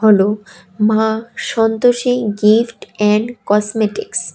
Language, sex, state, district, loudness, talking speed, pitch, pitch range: Bengali, female, Tripura, West Tripura, -16 LUFS, 85 wpm, 220 Hz, 210-230 Hz